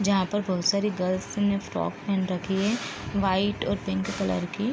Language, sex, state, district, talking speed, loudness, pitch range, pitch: Hindi, female, Uttar Pradesh, Deoria, 190 wpm, -27 LUFS, 185-205 Hz, 195 Hz